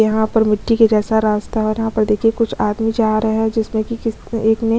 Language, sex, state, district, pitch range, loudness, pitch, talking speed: Hindi, female, Chhattisgarh, Kabirdham, 215-225 Hz, -17 LUFS, 220 Hz, 265 wpm